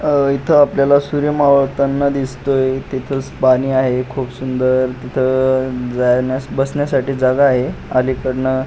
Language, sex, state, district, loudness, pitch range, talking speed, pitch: Marathi, male, Maharashtra, Pune, -16 LUFS, 130-140 Hz, 125 wpm, 130 Hz